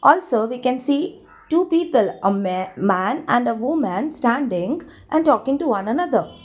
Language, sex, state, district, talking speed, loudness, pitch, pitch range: English, female, Gujarat, Valsad, 165 wpm, -20 LUFS, 270 Hz, 230-310 Hz